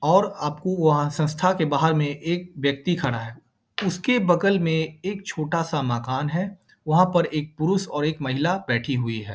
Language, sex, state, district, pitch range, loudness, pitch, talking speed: Hindi, male, Bihar, Bhagalpur, 145-180 Hz, -23 LUFS, 160 Hz, 185 wpm